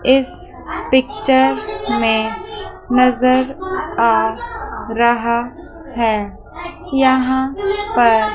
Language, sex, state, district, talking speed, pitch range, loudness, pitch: Hindi, female, Chandigarh, Chandigarh, 65 wpm, 235-360 Hz, -16 LUFS, 260 Hz